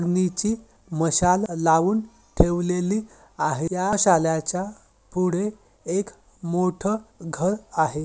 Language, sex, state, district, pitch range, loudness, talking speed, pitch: Marathi, male, Maharashtra, Dhule, 165-205 Hz, -23 LUFS, 90 wpm, 180 Hz